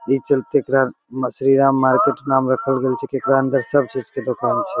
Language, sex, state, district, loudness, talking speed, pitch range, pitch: Maithili, male, Bihar, Begusarai, -18 LUFS, 225 wpm, 130-135 Hz, 135 Hz